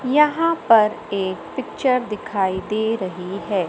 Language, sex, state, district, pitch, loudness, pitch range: Hindi, male, Madhya Pradesh, Katni, 210 Hz, -20 LUFS, 190-250 Hz